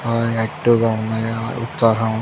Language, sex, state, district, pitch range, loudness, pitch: Telugu, male, Andhra Pradesh, Chittoor, 110-115 Hz, -19 LUFS, 115 Hz